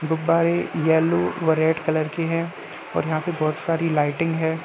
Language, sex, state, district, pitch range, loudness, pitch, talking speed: Hindi, male, Uttar Pradesh, Jalaun, 155-165 Hz, -22 LUFS, 160 Hz, 195 wpm